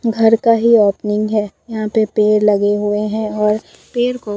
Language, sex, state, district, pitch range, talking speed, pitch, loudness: Hindi, female, Bihar, Katihar, 210-225 Hz, 190 wpm, 215 Hz, -15 LUFS